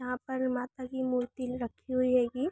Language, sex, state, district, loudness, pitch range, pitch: Hindi, female, Uttar Pradesh, Varanasi, -32 LUFS, 250-260 Hz, 255 Hz